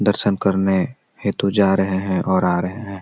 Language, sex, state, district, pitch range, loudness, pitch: Hindi, male, Bihar, Gaya, 95-100 Hz, -19 LUFS, 95 Hz